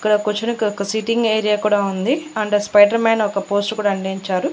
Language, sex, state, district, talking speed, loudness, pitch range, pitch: Telugu, female, Andhra Pradesh, Annamaya, 185 wpm, -18 LUFS, 200-220 Hz, 210 Hz